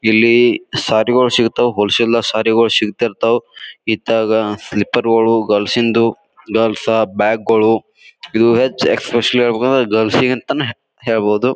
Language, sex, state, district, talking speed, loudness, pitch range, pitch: Kannada, male, Karnataka, Bijapur, 130 wpm, -15 LUFS, 110-120 Hz, 115 Hz